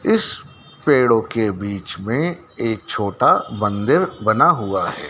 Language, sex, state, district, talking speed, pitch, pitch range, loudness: Hindi, male, Madhya Pradesh, Dhar, 130 wpm, 115 Hz, 105-155 Hz, -19 LUFS